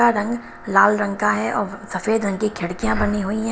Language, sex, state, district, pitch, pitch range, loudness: Hindi, female, Himachal Pradesh, Shimla, 210 Hz, 200-220 Hz, -21 LUFS